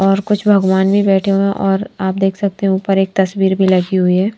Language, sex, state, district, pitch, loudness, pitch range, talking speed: Hindi, female, Bihar, Katihar, 195 Hz, -14 LUFS, 190-200 Hz, 245 wpm